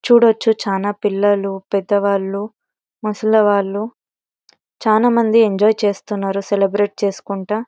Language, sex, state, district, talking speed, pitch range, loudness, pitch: Telugu, female, Karnataka, Bellary, 95 wpm, 200-220 Hz, -17 LUFS, 205 Hz